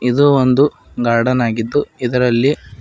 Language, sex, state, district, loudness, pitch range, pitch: Kannada, male, Karnataka, Bidar, -15 LUFS, 115-140 Hz, 125 Hz